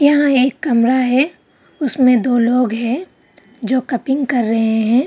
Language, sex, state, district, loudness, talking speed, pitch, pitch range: Hindi, female, Bihar, Vaishali, -16 LUFS, 140 wpm, 250 Hz, 240-275 Hz